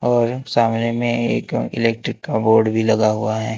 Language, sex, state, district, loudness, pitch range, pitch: Hindi, male, Maharashtra, Gondia, -19 LUFS, 110-120 Hz, 115 Hz